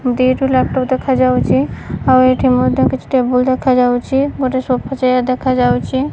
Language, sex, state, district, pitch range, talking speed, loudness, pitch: Odia, female, Odisha, Malkangiri, 255-260 Hz, 125 wpm, -14 LUFS, 255 Hz